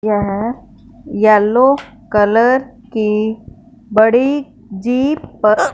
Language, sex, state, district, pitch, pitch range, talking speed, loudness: Hindi, male, Punjab, Fazilka, 230 Hz, 215-250 Hz, 75 wpm, -15 LUFS